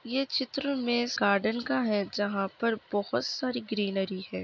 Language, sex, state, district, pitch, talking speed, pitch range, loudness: Hindi, female, Maharashtra, Solapur, 225 Hz, 160 wpm, 200-255 Hz, -29 LUFS